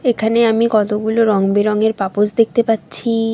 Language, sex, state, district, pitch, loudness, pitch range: Bengali, female, West Bengal, Jalpaiguri, 220 Hz, -16 LUFS, 210-230 Hz